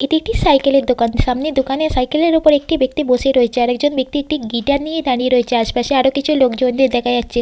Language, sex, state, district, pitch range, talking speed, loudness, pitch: Bengali, female, West Bengal, Jhargram, 250-290 Hz, 210 wpm, -15 LUFS, 265 Hz